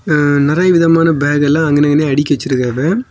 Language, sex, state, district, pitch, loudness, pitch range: Tamil, male, Tamil Nadu, Kanyakumari, 150 Hz, -12 LUFS, 145-165 Hz